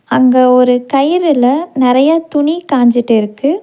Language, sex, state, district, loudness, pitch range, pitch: Tamil, female, Tamil Nadu, Nilgiris, -11 LUFS, 250-305 Hz, 265 Hz